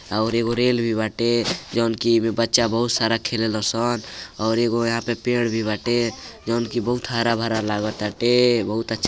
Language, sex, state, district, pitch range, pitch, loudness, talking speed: Bhojpuri, male, Uttar Pradesh, Gorakhpur, 110-120 Hz, 115 Hz, -21 LUFS, 205 wpm